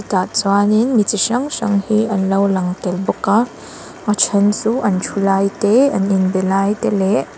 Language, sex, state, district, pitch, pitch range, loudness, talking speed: Mizo, female, Mizoram, Aizawl, 200 Hz, 195-215 Hz, -16 LUFS, 205 wpm